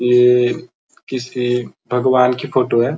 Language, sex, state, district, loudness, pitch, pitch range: Hindi, male, Uttar Pradesh, Muzaffarnagar, -17 LUFS, 125 Hz, 125-130 Hz